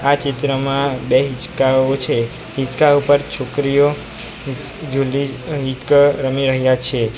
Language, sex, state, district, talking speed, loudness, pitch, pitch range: Gujarati, male, Gujarat, Valsad, 115 wpm, -17 LUFS, 135 Hz, 130-145 Hz